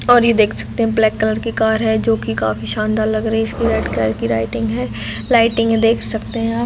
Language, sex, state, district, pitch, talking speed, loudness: Hindi, female, Chhattisgarh, Raigarh, 220 Hz, 245 wpm, -17 LUFS